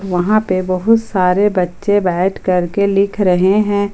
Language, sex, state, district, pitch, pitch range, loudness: Hindi, female, Jharkhand, Ranchi, 195 Hz, 185-205 Hz, -15 LUFS